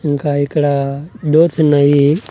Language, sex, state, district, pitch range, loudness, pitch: Telugu, male, Andhra Pradesh, Annamaya, 145-155 Hz, -14 LUFS, 145 Hz